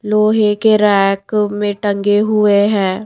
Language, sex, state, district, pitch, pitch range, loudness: Hindi, female, Himachal Pradesh, Shimla, 205 Hz, 200-215 Hz, -14 LUFS